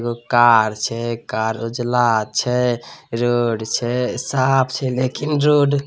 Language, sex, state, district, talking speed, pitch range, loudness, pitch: Maithili, male, Bihar, Samastipur, 135 wpm, 115-130 Hz, -19 LUFS, 120 Hz